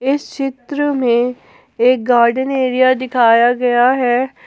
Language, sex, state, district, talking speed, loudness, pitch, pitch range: Hindi, female, Jharkhand, Ranchi, 120 wpm, -14 LUFS, 255 Hz, 245-265 Hz